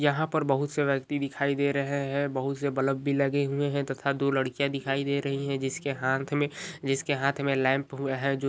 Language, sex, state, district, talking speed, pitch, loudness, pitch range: Hindi, male, Andhra Pradesh, Chittoor, 225 wpm, 140 Hz, -28 LUFS, 135-140 Hz